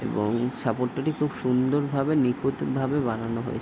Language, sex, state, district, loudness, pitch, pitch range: Bengali, male, West Bengal, Paschim Medinipur, -26 LUFS, 130 Hz, 120-140 Hz